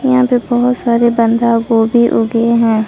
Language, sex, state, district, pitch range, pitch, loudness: Hindi, female, Bihar, Katihar, 230-240 Hz, 235 Hz, -12 LUFS